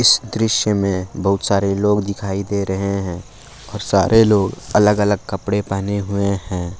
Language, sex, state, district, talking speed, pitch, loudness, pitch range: Hindi, male, Jharkhand, Palamu, 165 wpm, 100 Hz, -18 LUFS, 95-105 Hz